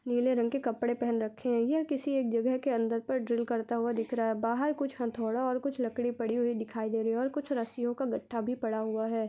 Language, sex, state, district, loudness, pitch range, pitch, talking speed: Hindi, female, Chhattisgarh, Rajnandgaon, -31 LUFS, 230-255 Hz, 235 Hz, 260 wpm